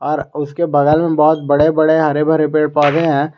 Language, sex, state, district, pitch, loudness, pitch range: Hindi, male, Jharkhand, Garhwa, 150 Hz, -14 LUFS, 150-160 Hz